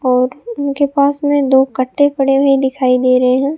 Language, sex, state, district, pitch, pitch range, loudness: Hindi, female, Rajasthan, Bikaner, 270 Hz, 255-280 Hz, -14 LUFS